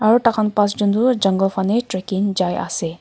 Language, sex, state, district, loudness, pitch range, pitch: Nagamese, female, Nagaland, Kohima, -18 LUFS, 190-220 Hz, 205 Hz